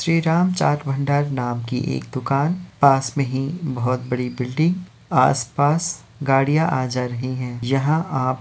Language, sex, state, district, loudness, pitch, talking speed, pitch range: Hindi, male, Uttar Pradesh, Varanasi, -21 LUFS, 135 Hz, 165 wpm, 125-155 Hz